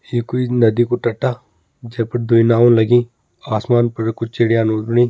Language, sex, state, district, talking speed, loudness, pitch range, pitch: Kumaoni, male, Uttarakhand, Tehri Garhwal, 175 wpm, -16 LUFS, 115-120 Hz, 120 Hz